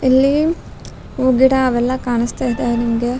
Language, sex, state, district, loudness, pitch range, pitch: Kannada, female, Karnataka, Raichur, -16 LUFS, 240-260 Hz, 255 Hz